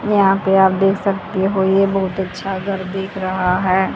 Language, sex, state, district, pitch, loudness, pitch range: Hindi, female, Haryana, Charkhi Dadri, 195 Hz, -17 LUFS, 190-195 Hz